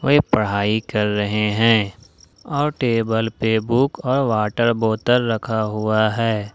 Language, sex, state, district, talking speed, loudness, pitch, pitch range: Hindi, male, Jharkhand, Ranchi, 135 wpm, -19 LUFS, 110 Hz, 105-120 Hz